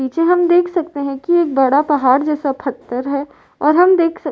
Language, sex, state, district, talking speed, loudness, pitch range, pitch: Hindi, female, Uttar Pradesh, Varanasi, 235 wpm, -15 LUFS, 275-345 Hz, 295 Hz